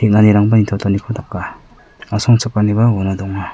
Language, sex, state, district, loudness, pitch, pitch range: Garo, male, Meghalaya, South Garo Hills, -15 LUFS, 105 Hz, 100-110 Hz